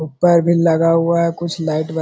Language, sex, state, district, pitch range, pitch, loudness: Hindi, male, Bihar, Araria, 160-170 Hz, 165 Hz, -16 LUFS